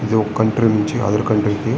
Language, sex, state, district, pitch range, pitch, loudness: Telugu, male, Andhra Pradesh, Srikakulam, 105-110 Hz, 110 Hz, -17 LUFS